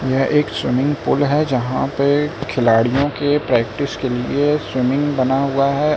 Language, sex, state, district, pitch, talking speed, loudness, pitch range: Hindi, male, Uttar Pradesh, Lucknow, 140 Hz, 160 wpm, -18 LUFS, 130-145 Hz